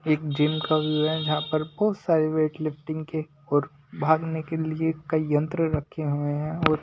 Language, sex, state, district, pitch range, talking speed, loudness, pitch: Hindi, male, Delhi, New Delhi, 150-160 Hz, 195 wpm, -26 LUFS, 155 Hz